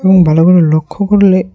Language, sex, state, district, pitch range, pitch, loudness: Bengali, male, Tripura, West Tripura, 160-190 Hz, 185 Hz, -9 LUFS